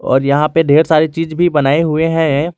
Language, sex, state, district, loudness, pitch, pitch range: Hindi, male, Jharkhand, Garhwa, -13 LUFS, 155 Hz, 145-165 Hz